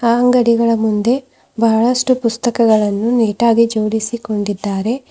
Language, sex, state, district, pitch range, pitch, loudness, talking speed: Kannada, female, Karnataka, Bidar, 220-240 Hz, 230 Hz, -15 LUFS, 70 wpm